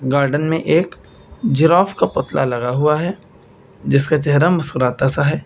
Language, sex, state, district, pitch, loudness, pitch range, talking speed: Hindi, male, Uttar Pradesh, Lucknow, 150 Hz, -17 LUFS, 135-160 Hz, 155 wpm